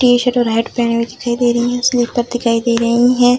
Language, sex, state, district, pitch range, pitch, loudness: Hindi, female, Bihar, Darbhanga, 235-245 Hz, 240 Hz, -15 LUFS